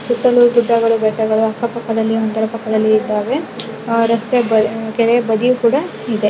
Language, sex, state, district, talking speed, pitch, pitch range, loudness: Kannada, female, Karnataka, Chamarajanagar, 115 wpm, 225 Hz, 220-235 Hz, -15 LUFS